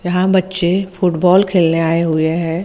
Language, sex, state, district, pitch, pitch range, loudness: Hindi, female, Maharashtra, Gondia, 180 Hz, 165-185 Hz, -15 LUFS